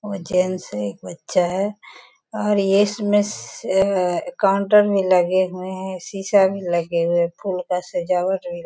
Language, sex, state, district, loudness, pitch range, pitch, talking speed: Hindi, female, Bihar, Sitamarhi, -20 LUFS, 180-200 Hz, 190 Hz, 165 wpm